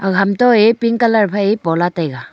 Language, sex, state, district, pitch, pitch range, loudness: Wancho, female, Arunachal Pradesh, Longding, 205 Hz, 185-230 Hz, -14 LUFS